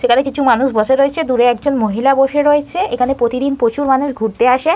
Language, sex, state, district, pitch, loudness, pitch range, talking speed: Bengali, female, West Bengal, Purulia, 270 Hz, -14 LUFS, 245-280 Hz, 200 wpm